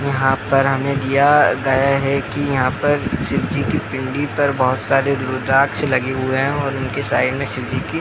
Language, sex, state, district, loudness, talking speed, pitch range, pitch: Hindi, male, Bihar, Muzaffarpur, -18 LUFS, 195 wpm, 130-140 Hz, 135 Hz